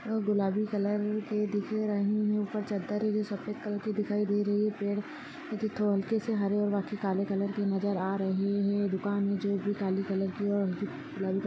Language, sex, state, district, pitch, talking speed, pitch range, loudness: Hindi, female, Chhattisgarh, Balrampur, 205 Hz, 205 wpm, 200-210 Hz, -31 LUFS